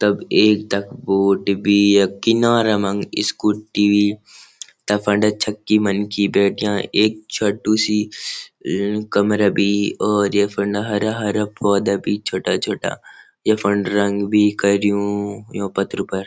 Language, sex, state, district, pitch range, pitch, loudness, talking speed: Garhwali, male, Uttarakhand, Uttarkashi, 100-105 Hz, 105 Hz, -18 LUFS, 135 wpm